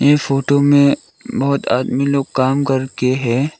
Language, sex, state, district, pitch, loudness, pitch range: Hindi, male, Arunachal Pradesh, Lower Dibang Valley, 140 Hz, -16 LUFS, 130-140 Hz